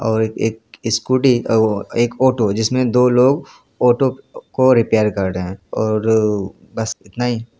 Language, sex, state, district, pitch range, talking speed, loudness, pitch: Hindi, male, Bihar, Jamui, 110-125 Hz, 150 wpm, -17 LUFS, 115 Hz